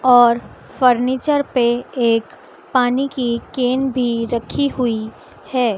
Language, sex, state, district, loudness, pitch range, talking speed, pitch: Hindi, female, Madhya Pradesh, Dhar, -18 LUFS, 235-260 Hz, 115 wpm, 250 Hz